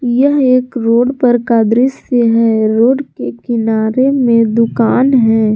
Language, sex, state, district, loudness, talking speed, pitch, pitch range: Hindi, female, Jharkhand, Garhwa, -12 LUFS, 140 wpm, 235 Hz, 225-255 Hz